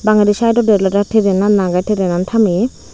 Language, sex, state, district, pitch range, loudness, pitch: Chakma, female, Tripura, Unakoti, 190-220 Hz, -14 LUFS, 205 Hz